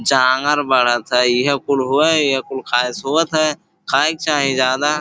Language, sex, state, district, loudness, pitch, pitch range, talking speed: Bhojpuri, male, Uttar Pradesh, Gorakhpur, -16 LUFS, 140 Hz, 130-150 Hz, 180 wpm